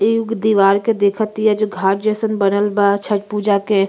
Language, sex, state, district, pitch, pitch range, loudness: Bhojpuri, female, Uttar Pradesh, Gorakhpur, 210 Hz, 200-215 Hz, -16 LUFS